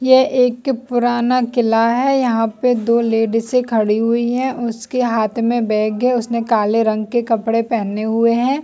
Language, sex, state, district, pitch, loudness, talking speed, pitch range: Hindi, female, Chhattisgarh, Bilaspur, 235 Hz, -17 LUFS, 175 wpm, 225-250 Hz